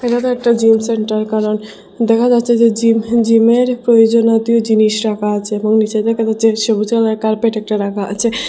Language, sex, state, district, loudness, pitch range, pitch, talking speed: Bengali, female, Assam, Hailakandi, -14 LUFS, 215-230 Hz, 225 Hz, 175 wpm